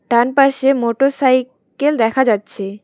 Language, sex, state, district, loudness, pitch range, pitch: Bengali, female, West Bengal, Cooch Behar, -15 LUFS, 230-275 Hz, 255 Hz